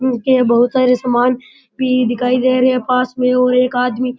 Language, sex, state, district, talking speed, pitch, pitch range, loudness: Rajasthani, male, Rajasthan, Churu, 215 wpm, 250 Hz, 250-255 Hz, -14 LUFS